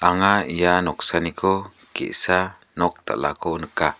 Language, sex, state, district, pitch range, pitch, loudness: Garo, male, Meghalaya, West Garo Hills, 90-95 Hz, 90 Hz, -21 LUFS